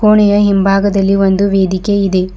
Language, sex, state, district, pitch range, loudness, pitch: Kannada, female, Karnataka, Bidar, 195-205 Hz, -11 LUFS, 195 Hz